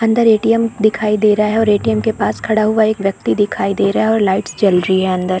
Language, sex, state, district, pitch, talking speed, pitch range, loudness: Hindi, female, Chhattisgarh, Korba, 210 Hz, 330 wpm, 195-220 Hz, -15 LUFS